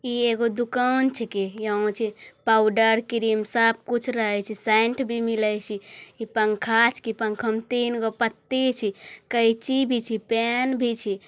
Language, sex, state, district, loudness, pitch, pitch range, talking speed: Angika, female, Bihar, Bhagalpur, -23 LUFS, 230 Hz, 215-240 Hz, 155 wpm